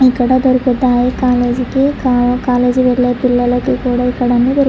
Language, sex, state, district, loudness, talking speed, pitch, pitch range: Telugu, female, Andhra Pradesh, Chittoor, -13 LUFS, 115 wpm, 250 Hz, 245-255 Hz